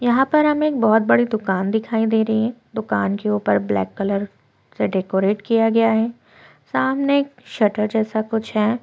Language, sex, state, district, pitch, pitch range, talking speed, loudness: Hindi, female, Chhattisgarh, Korba, 220 Hz, 200-240 Hz, 175 wpm, -20 LUFS